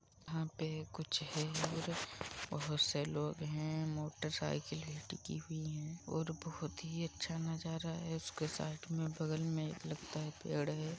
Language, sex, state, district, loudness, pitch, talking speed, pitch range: Hindi, female, Uttar Pradesh, Muzaffarnagar, -41 LUFS, 155 Hz, 155 wpm, 155-165 Hz